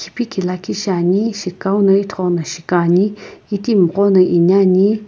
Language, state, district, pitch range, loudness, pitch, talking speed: Sumi, Nagaland, Kohima, 180-205 Hz, -15 LUFS, 190 Hz, 120 wpm